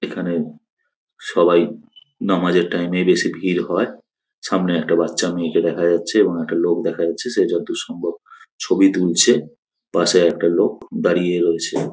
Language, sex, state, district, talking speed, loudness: Bengali, male, West Bengal, North 24 Parganas, 150 wpm, -18 LUFS